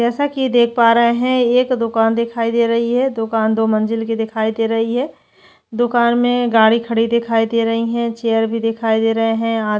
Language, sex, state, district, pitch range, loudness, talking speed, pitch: Hindi, female, Chhattisgarh, Bastar, 225-235 Hz, -16 LUFS, 210 wpm, 230 Hz